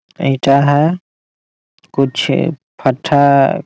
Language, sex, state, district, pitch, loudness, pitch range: Hindi, male, Bihar, Muzaffarpur, 140 Hz, -14 LUFS, 135-160 Hz